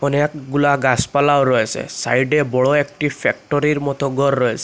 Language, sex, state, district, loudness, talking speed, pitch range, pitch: Bengali, male, Assam, Hailakandi, -17 LUFS, 130 wpm, 135-145 Hz, 140 Hz